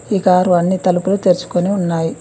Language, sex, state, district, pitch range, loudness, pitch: Telugu, female, Telangana, Mahabubabad, 175-190 Hz, -15 LUFS, 180 Hz